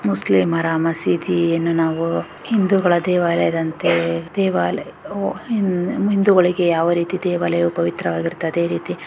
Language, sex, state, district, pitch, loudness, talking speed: Kannada, female, Karnataka, Raichur, 170 Hz, -19 LUFS, 100 wpm